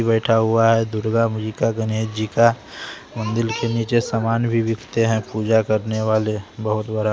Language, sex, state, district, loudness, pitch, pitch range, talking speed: Hindi, male, Bihar, West Champaran, -20 LUFS, 110 Hz, 110-115 Hz, 185 wpm